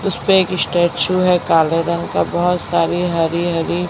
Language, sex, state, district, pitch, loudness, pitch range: Hindi, female, Maharashtra, Mumbai Suburban, 175 Hz, -16 LUFS, 170-180 Hz